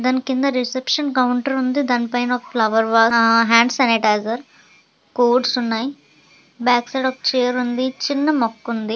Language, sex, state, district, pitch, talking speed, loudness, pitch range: Telugu, female, Andhra Pradesh, Visakhapatnam, 250 Hz, 140 wpm, -18 LUFS, 230-260 Hz